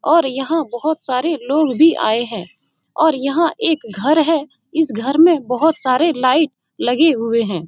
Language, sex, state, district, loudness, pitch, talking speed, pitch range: Hindi, female, Bihar, Saran, -16 LUFS, 295 Hz, 170 wpm, 250-320 Hz